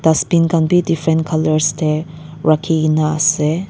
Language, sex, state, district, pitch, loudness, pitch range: Nagamese, female, Nagaland, Dimapur, 155 Hz, -15 LUFS, 155-165 Hz